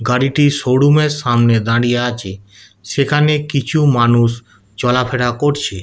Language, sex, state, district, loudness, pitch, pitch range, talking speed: Bengali, male, West Bengal, Kolkata, -14 LUFS, 125 Hz, 115-145 Hz, 115 wpm